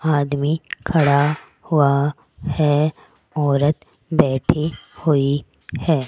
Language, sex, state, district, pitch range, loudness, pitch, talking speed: Hindi, female, Rajasthan, Jaipur, 140-155 Hz, -20 LUFS, 145 Hz, 80 wpm